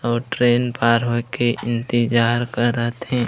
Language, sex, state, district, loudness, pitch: Chhattisgarhi, male, Chhattisgarh, Raigarh, -19 LUFS, 120 Hz